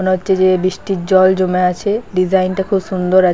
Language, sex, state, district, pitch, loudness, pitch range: Bengali, female, West Bengal, Paschim Medinipur, 185 Hz, -15 LUFS, 185-190 Hz